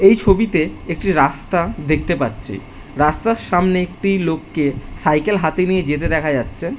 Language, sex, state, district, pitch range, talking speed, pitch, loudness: Bengali, male, West Bengal, Jhargram, 150-185 Hz, 140 wpm, 160 Hz, -18 LUFS